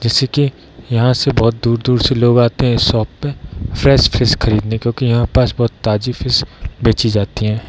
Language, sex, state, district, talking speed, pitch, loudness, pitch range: Hindi, male, Bihar, Darbhanga, 195 wpm, 115 Hz, -15 LUFS, 110-125 Hz